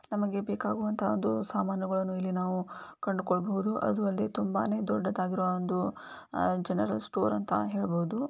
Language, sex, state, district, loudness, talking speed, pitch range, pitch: Kannada, female, Karnataka, Dharwad, -31 LUFS, 125 wpm, 180-200 Hz, 185 Hz